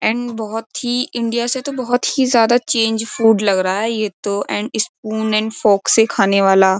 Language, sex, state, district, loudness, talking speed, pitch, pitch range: Hindi, female, Uttar Pradesh, Jyotiba Phule Nagar, -17 LUFS, 205 wpm, 225 Hz, 205-235 Hz